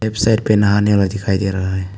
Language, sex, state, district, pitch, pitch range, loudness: Hindi, male, Arunachal Pradesh, Papum Pare, 100 Hz, 95-105 Hz, -16 LUFS